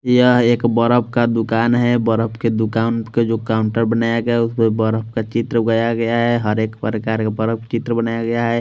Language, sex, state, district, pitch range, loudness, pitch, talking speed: Hindi, male, Chandigarh, Chandigarh, 110-120 Hz, -17 LUFS, 115 Hz, 215 wpm